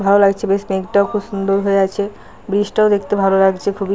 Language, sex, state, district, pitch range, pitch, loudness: Bengali, female, West Bengal, Paschim Medinipur, 195-205 Hz, 200 Hz, -16 LUFS